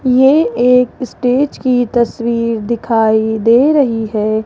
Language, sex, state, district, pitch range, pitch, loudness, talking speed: Hindi, female, Rajasthan, Jaipur, 225-255 Hz, 235 Hz, -13 LUFS, 120 wpm